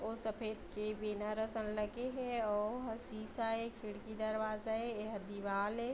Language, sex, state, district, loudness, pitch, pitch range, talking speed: Chhattisgarhi, female, Chhattisgarh, Bilaspur, -40 LUFS, 220 Hz, 210-225 Hz, 170 wpm